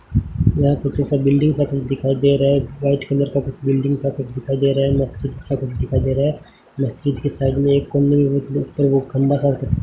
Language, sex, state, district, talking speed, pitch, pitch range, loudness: Hindi, male, Rajasthan, Bikaner, 240 wpm, 140 Hz, 135-140 Hz, -19 LUFS